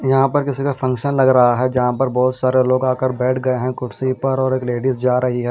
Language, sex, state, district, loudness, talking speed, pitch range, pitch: Hindi, male, Haryana, Rohtak, -17 LUFS, 270 wpm, 125-130 Hz, 130 Hz